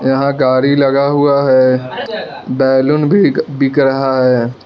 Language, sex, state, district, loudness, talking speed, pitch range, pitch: Hindi, male, Arunachal Pradesh, Lower Dibang Valley, -12 LUFS, 130 wpm, 130-140 Hz, 135 Hz